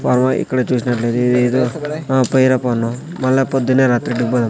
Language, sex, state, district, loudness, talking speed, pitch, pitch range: Telugu, male, Andhra Pradesh, Sri Satya Sai, -16 LUFS, 145 wpm, 125 Hz, 125-130 Hz